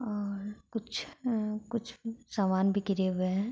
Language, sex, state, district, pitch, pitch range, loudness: Hindi, female, Jharkhand, Sahebganj, 215 Hz, 195-230 Hz, -33 LUFS